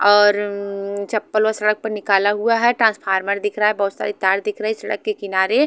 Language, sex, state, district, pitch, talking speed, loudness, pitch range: Hindi, female, Haryana, Charkhi Dadri, 205 Hz, 220 wpm, -19 LUFS, 200-215 Hz